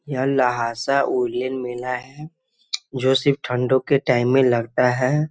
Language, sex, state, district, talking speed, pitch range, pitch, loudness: Hindi, male, Bihar, Muzaffarpur, 145 wpm, 125-140 Hz, 130 Hz, -21 LUFS